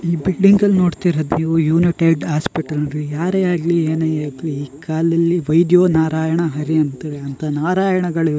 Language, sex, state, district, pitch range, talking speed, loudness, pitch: Kannada, male, Karnataka, Gulbarga, 155-175 Hz, 150 wpm, -17 LUFS, 160 Hz